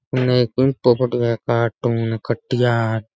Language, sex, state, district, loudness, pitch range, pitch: Rajasthani, male, Rajasthan, Nagaur, -19 LUFS, 115-125 Hz, 120 Hz